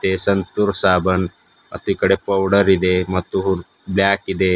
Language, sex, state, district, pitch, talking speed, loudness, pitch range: Kannada, male, Karnataka, Bidar, 95 Hz, 120 wpm, -18 LUFS, 90-100 Hz